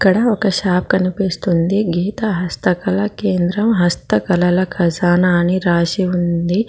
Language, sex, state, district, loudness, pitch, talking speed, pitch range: Telugu, female, Telangana, Mahabubabad, -16 LUFS, 180 Hz, 125 wpm, 175-195 Hz